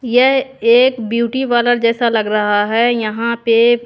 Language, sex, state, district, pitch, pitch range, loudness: Hindi, female, Haryana, Jhajjar, 235 Hz, 230-245 Hz, -14 LUFS